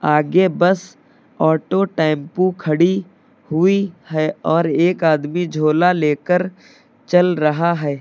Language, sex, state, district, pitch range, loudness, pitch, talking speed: Hindi, male, Uttar Pradesh, Lucknow, 155-185 Hz, -17 LUFS, 175 Hz, 110 wpm